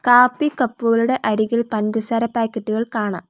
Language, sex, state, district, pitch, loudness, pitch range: Malayalam, female, Kerala, Kollam, 230 Hz, -19 LUFS, 215-240 Hz